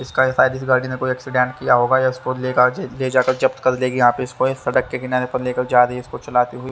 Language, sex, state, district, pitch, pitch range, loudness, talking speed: Hindi, male, Haryana, Charkhi Dadri, 130 Hz, 125-130 Hz, -18 LUFS, 260 wpm